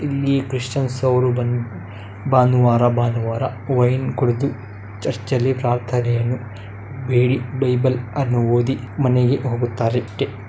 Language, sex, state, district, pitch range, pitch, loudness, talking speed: Kannada, male, Karnataka, Dakshina Kannada, 115-130 Hz, 125 Hz, -19 LUFS, 85 wpm